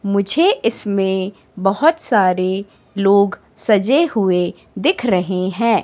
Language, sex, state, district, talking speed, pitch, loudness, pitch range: Hindi, female, Madhya Pradesh, Katni, 105 wpm, 200 Hz, -17 LUFS, 190-235 Hz